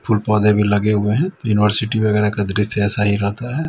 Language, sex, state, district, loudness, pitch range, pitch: Hindi, male, Delhi, New Delhi, -17 LUFS, 105-110 Hz, 105 Hz